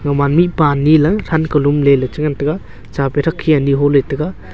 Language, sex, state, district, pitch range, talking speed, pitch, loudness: Wancho, male, Arunachal Pradesh, Longding, 140-155 Hz, 225 wpm, 145 Hz, -14 LUFS